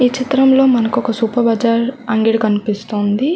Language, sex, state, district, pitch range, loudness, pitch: Telugu, female, Andhra Pradesh, Chittoor, 220-255 Hz, -15 LUFS, 230 Hz